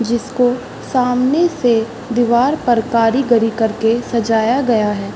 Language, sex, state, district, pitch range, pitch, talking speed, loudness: Hindi, female, Bihar, Saran, 225-250 Hz, 235 Hz, 115 wpm, -16 LUFS